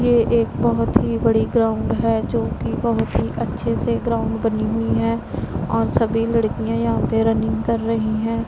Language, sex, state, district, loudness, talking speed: Hindi, female, Punjab, Pathankot, -20 LUFS, 175 wpm